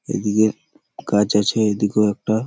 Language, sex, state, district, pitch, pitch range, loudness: Bengali, male, West Bengal, Malda, 105 Hz, 105-110 Hz, -19 LUFS